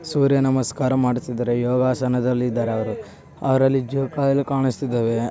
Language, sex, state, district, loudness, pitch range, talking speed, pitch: Kannada, male, Karnataka, Bellary, -21 LUFS, 120-135 Hz, 100 wpm, 130 Hz